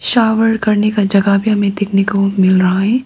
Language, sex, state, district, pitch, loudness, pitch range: Hindi, female, Arunachal Pradesh, Papum Pare, 205 Hz, -13 LUFS, 195-215 Hz